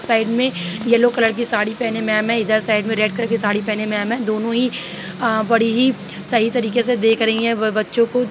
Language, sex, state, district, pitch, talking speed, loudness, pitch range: Hindi, female, Uttar Pradesh, Jalaun, 225 Hz, 245 wpm, -18 LUFS, 215-235 Hz